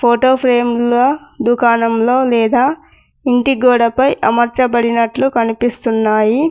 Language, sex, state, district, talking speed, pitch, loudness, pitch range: Telugu, female, Telangana, Mahabubabad, 90 wpm, 240 Hz, -13 LUFS, 235-260 Hz